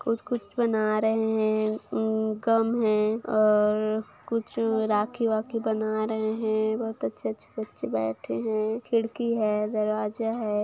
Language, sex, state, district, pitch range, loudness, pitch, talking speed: Hindi, female, Chhattisgarh, Kabirdham, 215-225 Hz, -27 LUFS, 220 Hz, 120 wpm